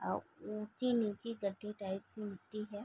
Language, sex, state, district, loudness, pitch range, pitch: Hindi, female, Bihar, East Champaran, -40 LUFS, 200-215 Hz, 210 Hz